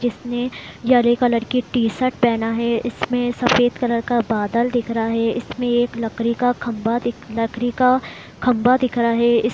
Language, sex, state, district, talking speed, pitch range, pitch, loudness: Hindi, female, Bihar, Muzaffarpur, 180 wpm, 230-245 Hz, 240 Hz, -19 LUFS